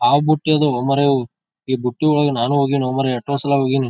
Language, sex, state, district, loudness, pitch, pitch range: Kannada, male, Karnataka, Bijapur, -18 LUFS, 140 Hz, 130-145 Hz